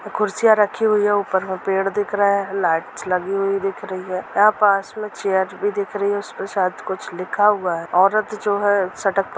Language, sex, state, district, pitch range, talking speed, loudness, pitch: Hindi, female, Jharkhand, Sahebganj, 190-205 Hz, 215 wpm, -20 LUFS, 195 Hz